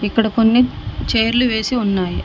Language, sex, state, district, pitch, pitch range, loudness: Telugu, female, Telangana, Mahabubabad, 225 Hz, 220-245 Hz, -17 LUFS